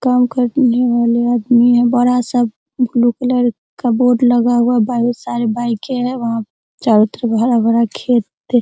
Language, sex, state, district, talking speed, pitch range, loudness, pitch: Hindi, female, Bihar, Araria, 165 wpm, 235-245 Hz, -15 LUFS, 240 Hz